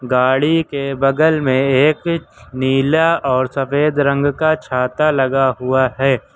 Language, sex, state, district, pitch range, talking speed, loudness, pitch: Hindi, male, Uttar Pradesh, Lucknow, 130-150 Hz, 130 wpm, -16 LUFS, 135 Hz